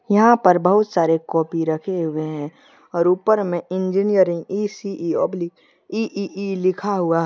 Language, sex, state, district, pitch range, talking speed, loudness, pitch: Hindi, male, Jharkhand, Deoghar, 165-200 Hz, 150 wpm, -20 LUFS, 185 Hz